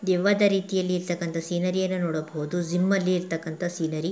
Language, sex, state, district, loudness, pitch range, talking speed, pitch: Kannada, female, Karnataka, Mysore, -26 LUFS, 165-185 Hz, 145 wpm, 180 Hz